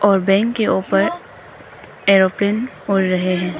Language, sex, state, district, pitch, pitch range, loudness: Hindi, female, Arunachal Pradesh, Papum Pare, 195 Hz, 185-210 Hz, -17 LUFS